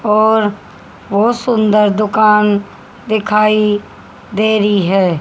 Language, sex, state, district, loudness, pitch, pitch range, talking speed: Hindi, female, Haryana, Charkhi Dadri, -13 LUFS, 210 Hz, 205-215 Hz, 90 wpm